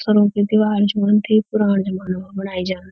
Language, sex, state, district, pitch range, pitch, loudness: Garhwali, female, Uttarakhand, Uttarkashi, 190-210 Hz, 205 Hz, -18 LUFS